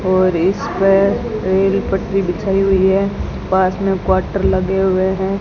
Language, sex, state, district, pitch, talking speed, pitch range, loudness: Hindi, female, Rajasthan, Bikaner, 190 Hz, 145 wpm, 190-195 Hz, -16 LUFS